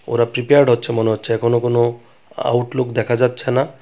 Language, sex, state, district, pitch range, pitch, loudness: Bengali, male, Tripura, West Tripura, 120-125 Hz, 120 Hz, -17 LUFS